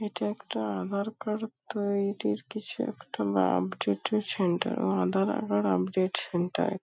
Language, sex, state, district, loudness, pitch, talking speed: Bengali, female, West Bengal, Paschim Medinipur, -30 LUFS, 175 Hz, 140 wpm